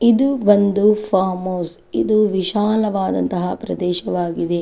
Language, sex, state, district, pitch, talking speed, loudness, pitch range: Kannada, female, Karnataka, Chamarajanagar, 195 Hz, 90 wpm, -18 LUFS, 180-210 Hz